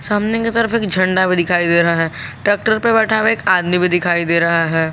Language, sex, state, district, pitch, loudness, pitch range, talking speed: Hindi, male, Jharkhand, Garhwa, 180 Hz, -15 LUFS, 170-220 Hz, 255 wpm